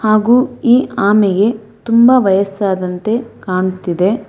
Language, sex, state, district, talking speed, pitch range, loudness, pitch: Kannada, female, Karnataka, Bangalore, 85 wpm, 190-235 Hz, -13 LUFS, 215 Hz